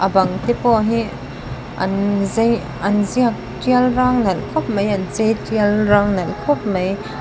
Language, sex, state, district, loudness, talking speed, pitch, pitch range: Mizo, female, Mizoram, Aizawl, -18 LUFS, 175 wpm, 205 Hz, 195-235 Hz